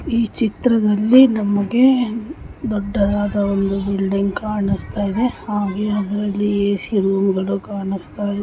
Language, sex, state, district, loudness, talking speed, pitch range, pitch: Kannada, female, Karnataka, Mysore, -18 LUFS, 115 wpm, 200-220 Hz, 205 Hz